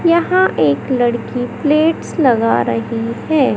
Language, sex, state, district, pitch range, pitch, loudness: Hindi, male, Madhya Pradesh, Katni, 230-315 Hz, 250 Hz, -15 LUFS